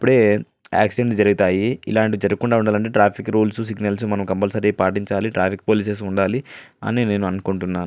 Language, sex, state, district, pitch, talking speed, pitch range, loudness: Telugu, male, Andhra Pradesh, Anantapur, 105 Hz, 145 wpm, 100-110 Hz, -20 LUFS